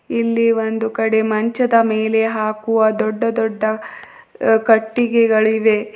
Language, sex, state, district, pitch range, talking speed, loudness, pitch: Kannada, female, Karnataka, Bidar, 220-230 Hz, 90 wpm, -17 LUFS, 220 Hz